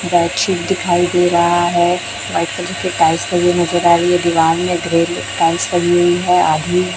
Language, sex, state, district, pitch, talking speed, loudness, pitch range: Hindi, male, Chhattisgarh, Raipur, 175 Hz, 200 wpm, -15 LUFS, 170-175 Hz